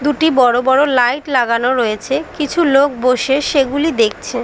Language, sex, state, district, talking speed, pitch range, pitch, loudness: Bengali, female, West Bengal, Dakshin Dinajpur, 160 wpm, 245-290 Hz, 265 Hz, -14 LUFS